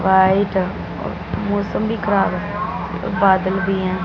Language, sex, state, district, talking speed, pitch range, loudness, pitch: Hindi, female, Punjab, Fazilka, 135 wpm, 190-205 Hz, -19 LUFS, 190 Hz